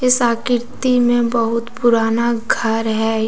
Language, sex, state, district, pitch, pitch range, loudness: Hindi, female, Jharkhand, Deoghar, 235 Hz, 225-240 Hz, -17 LUFS